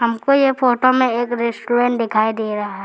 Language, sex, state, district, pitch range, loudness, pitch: Hindi, male, Arunachal Pradesh, Lower Dibang Valley, 225-255 Hz, -17 LUFS, 235 Hz